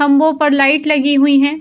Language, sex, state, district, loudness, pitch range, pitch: Hindi, female, Uttar Pradesh, Jyotiba Phule Nagar, -12 LUFS, 280-300 Hz, 285 Hz